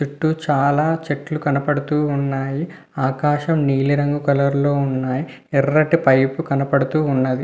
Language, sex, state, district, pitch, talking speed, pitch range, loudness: Telugu, male, Andhra Pradesh, Visakhapatnam, 145 Hz, 115 wpm, 135-150 Hz, -19 LUFS